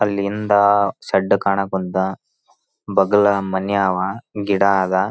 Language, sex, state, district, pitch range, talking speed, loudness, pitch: Kannada, male, Karnataka, Raichur, 95-100 Hz, 115 wpm, -18 LUFS, 100 Hz